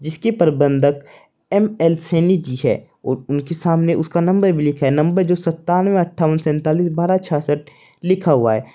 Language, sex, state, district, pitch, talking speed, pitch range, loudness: Hindi, male, Uttar Pradesh, Saharanpur, 165 Hz, 170 wpm, 145-180 Hz, -17 LUFS